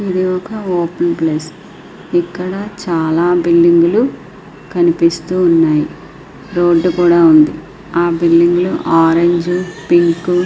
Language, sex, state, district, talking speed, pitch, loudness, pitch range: Telugu, female, Andhra Pradesh, Srikakulam, 90 wpm, 175 Hz, -13 LUFS, 170-180 Hz